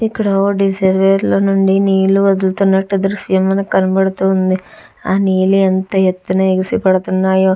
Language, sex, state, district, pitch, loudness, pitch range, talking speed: Telugu, female, Andhra Pradesh, Chittoor, 190 Hz, -14 LUFS, 190-195 Hz, 145 wpm